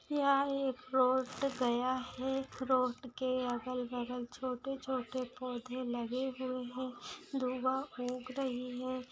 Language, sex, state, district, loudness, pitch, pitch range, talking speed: Hindi, female, Maharashtra, Aurangabad, -36 LUFS, 255 Hz, 250-265 Hz, 110 wpm